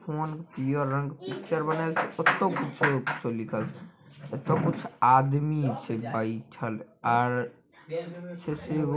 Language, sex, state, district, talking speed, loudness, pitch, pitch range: Maithili, male, Bihar, Samastipur, 100 wpm, -28 LUFS, 145 Hz, 120-160 Hz